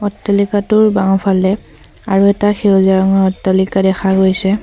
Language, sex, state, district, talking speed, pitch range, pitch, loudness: Assamese, female, Assam, Sonitpur, 115 wpm, 190-205 Hz, 195 Hz, -13 LUFS